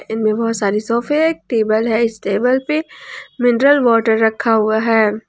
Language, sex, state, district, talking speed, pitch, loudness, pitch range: Hindi, female, Jharkhand, Ranchi, 170 wpm, 230 Hz, -16 LUFS, 220-250 Hz